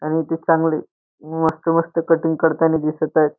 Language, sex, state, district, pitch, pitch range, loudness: Marathi, male, Maharashtra, Nagpur, 160 Hz, 155-165 Hz, -19 LUFS